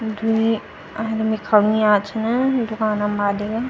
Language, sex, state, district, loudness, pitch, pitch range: Garhwali, female, Uttarakhand, Tehri Garhwal, -20 LUFS, 220 Hz, 210-225 Hz